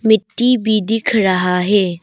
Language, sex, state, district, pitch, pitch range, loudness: Hindi, female, Arunachal Pradesh, Papum Pare, 210 Hz, 185-225 Hz, -15 LUFS